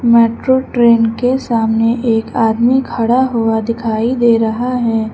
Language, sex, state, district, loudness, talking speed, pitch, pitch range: Hindi, female, Uttar Pradesh, Lucknow, -14 LUFS, 140 wpm, 230 Hz, 225-245 Hz